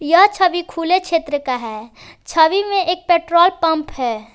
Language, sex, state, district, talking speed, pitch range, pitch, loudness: Hindi, female, Jharkhand, Palamu, 165 wpm, 290-360 Hz, 335 Hz, -16 LUFS